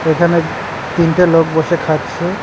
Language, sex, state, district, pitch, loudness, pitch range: Bengali, male, West Bengal, Cooch Behar, 165 Hz, -14 LUFS, 160-170 Hz